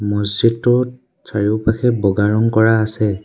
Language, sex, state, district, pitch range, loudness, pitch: Assamese, male, Assam, Sonitpur, 105-115 Hz, -16 LUFS, 110 Hz